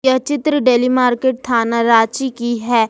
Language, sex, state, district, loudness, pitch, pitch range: Hindi, female, Jharkhand, Ranchi, -15 LUFS, 245 Hz, 235-260 Hz